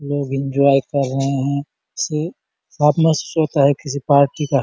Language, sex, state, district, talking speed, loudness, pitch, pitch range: Hindi, male, Chhattisgarh, Bastar, 170 wpm, -18 LUFS, 140 Hz, 140-150 Hz